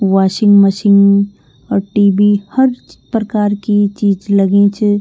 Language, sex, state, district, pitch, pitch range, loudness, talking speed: Garhwali, female, Uttarakhand, Tehri Garhwal, 200 Hz, 200-205 Hz, -12 LUFS, 130 wpm